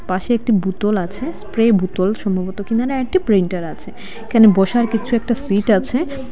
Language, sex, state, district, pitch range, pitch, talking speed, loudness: Bengali, female, Assam, Hailakandi, 195-235 Hz, 215 Hz, 160 wpm, -17 LUFS